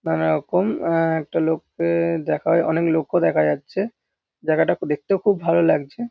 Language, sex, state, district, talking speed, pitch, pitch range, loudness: Bengali, male, West Bengal, North 24 Parganas, 140 wpm, 165 Hz, 150-170 Hz, -21 LUFS